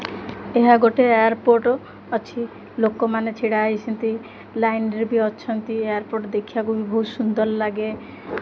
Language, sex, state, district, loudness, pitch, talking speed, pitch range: Odia, female, Odisha, Khordha, -21 LUFS, 225 Hz, 120 wpm, 220-230 Hz